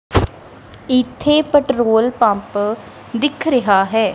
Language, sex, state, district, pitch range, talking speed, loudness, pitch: Punjabi, female, Punjab, Kapurthala, 215-280 Hz, 85 wpm, -16 LUFS, 240 Hz